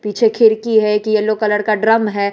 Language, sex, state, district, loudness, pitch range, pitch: Hindi, female, Bihar, West Champaran, -14 LUFS, 210-220 Hz, 215 Hz